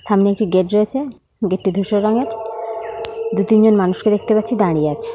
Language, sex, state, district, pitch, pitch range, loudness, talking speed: Bengali, female, West Bengal, North 24 Parganas, 215 Hz, 200-225 Hz, -17 LUFS, 175 wpm